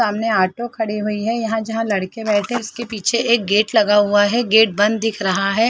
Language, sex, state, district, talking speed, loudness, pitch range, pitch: Hindi, female, Chhattisgarh, Rajnandgaon, 230 wpm, -18 LUFS, 205-230 Hz, 220 Hz